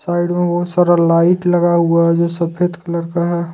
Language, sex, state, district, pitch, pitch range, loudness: Hindi, male, Jharkhand, Ranchi, 175 Hz, 170-175 Hz, -15 LUFS